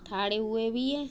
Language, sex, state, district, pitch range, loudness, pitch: Bundeli, female, Uttar Pradesh, Budaun, 210-255 Hz, -30 LUFS, 225 Hz